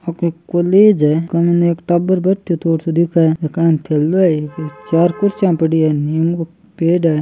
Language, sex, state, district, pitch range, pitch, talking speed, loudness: Marwari, male, Rajasthan, Churu, 160-175 Hz, 170 Hz, 190 wpm, -15 LUFS